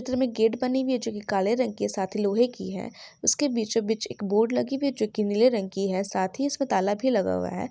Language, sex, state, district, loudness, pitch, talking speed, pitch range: Hindi, female, Bihar, Jahanabad, -26 LUFS, 225 Hz, 305 wpm, 200-255 Hz